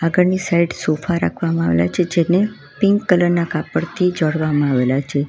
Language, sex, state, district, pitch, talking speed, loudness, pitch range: Gujarati, female, Gujarat, Valsad, 170 Hz, 160 wpm, -18 LUFS, 140-180 Hz